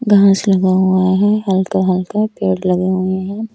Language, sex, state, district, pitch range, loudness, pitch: Hindi, male, Odisha, Nuapada, 185-200 Hz, -15 LUFS, 190 Hz